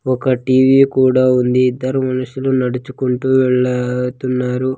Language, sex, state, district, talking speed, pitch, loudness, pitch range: Telugu, male, Andhra Pradesh, Sri Satya Sai, 100 wpm, 130 Hz, -15 LUFS, 125-130 Hz